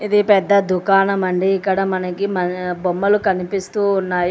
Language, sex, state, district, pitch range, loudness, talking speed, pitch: Telugu, female, Telangana, Hyderabad, 180-200 Hz, -18 LUFS, 140 wpm, 190 Hz